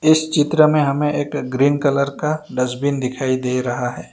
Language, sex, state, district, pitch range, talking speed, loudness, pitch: Hindi, male, Karnataka, Bangalore, 130-150 Hz, 190 wpm, -18 LUFS, 140 Hz